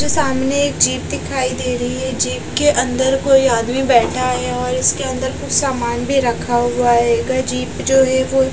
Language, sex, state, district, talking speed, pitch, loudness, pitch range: Hindi, female, Bihar, West Champaran, 205 wpm, 255 Hz, -16 LUFS, 240-265 Hz